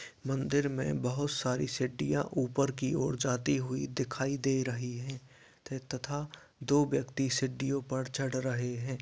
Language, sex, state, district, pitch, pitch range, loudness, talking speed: Hindi, male, Bihar, Purnia, 130 Hz, 125-135 Hz, -33 LUFS, 145 wpm